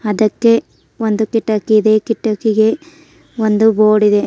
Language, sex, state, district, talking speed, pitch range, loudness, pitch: Kannada, female, Karnataka, Bidar, 110 wpm, 215-225 Hz, -14 LUFS, 220 Hz